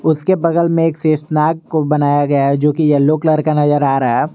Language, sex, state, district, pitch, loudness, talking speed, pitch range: Hindi, male, Jharkhand, Garhwa, 155 Hz, -14 LUFS, 250 wpm, 145-160 Hz